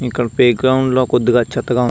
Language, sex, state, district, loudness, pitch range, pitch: Telugu, male, Andhra Pradesh, Visakhapatnam, -15 LUFS, 120-130 Hz, 125 Hz